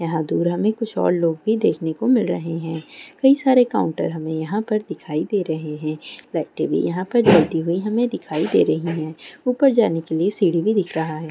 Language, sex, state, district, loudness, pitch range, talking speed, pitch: Hindi, female, Bihar, Saharsa, -20 LUFS, 160-220 Hz, 150 wpm, 170 Hz